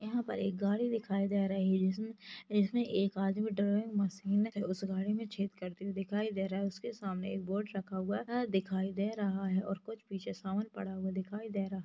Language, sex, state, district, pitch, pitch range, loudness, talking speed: Hindi, female, Maharashtra, Chandrapur, 200 Hz, 195-210 Hz, -36 LUFS, 195 wpm